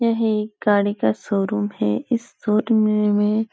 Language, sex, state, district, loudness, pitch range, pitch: Hindi, female, Bihar, Supaul, -20 LUFS, 205-220 Hz, 210 Hz